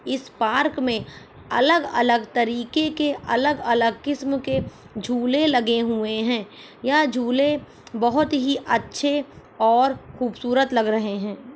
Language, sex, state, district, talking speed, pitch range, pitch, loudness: Hindi, female, Jharkhand, Jamtara, 130 wpm, 230-285 Hz, 245 Hz, -22 LUFS